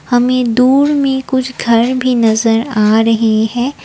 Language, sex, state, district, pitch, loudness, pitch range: Hindi, female, Assam, Kamrup Metropolitan, 245 Hz, -12 LUFS, 225-260 Hz